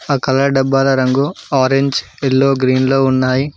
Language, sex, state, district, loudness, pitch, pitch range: Telugu, male, Telangana, Mahabubabad, -14 LUFS, 135 Hz, 130-135 Hz